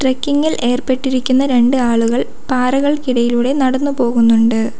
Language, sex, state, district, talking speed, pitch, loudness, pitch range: Malayalam, female, Kerala, Kollam, 90 wpm, 255 Hz, -15 LUFS, 240-265 Hz